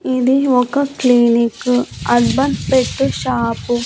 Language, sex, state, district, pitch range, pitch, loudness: Telugu, female, Andhra Pradesh, Annamaya, 240-265 Hz, 250 Hz, -15 LUFS